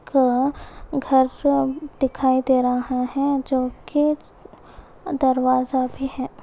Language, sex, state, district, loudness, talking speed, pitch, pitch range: Hindi, female, Uttar Pradesh, Hamirpur, -21 LUFS, 95 wpm, 265 Hz, 255-275 Hz